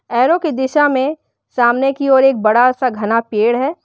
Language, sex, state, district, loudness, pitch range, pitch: Hindi, female, Uttar Pradesh, Shamli, -14 LUFS, 240-275 Hz, 260 Hz